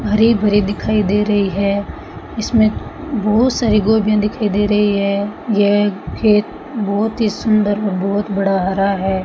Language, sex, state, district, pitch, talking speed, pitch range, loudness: Hindi, female, Rajasthan, Bikaner, 210 Hz, 155 wpm, 200-215 Hz, -16 LUFS